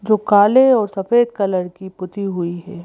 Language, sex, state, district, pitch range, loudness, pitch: Hindi, female, Madhya Pradesh, Bhopal, 185-215 Hz, -16 LUFS, 200 Hz